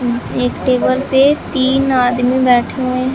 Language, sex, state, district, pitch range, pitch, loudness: Hindi, male, Bihar, Katihar, 245-265 Hz, 255 Hz, -14 LUFS